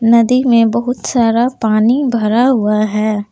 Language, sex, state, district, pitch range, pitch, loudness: Hindi, female, Jharkhand, Palamu, 215-245 Hz, 230 Hz, -13 LUFS